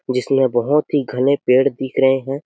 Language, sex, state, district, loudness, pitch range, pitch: Hindi, male, Chhattisgarh, Sarguja, -17 LUFS, 130-140 Hz, 135 Hz